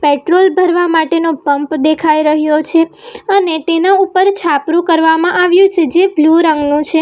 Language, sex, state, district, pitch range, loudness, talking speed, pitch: Gujarati, female, Gujarat, Valsad, 310-365 Hz, -11 LUFS, 155 wpm, 330 Hz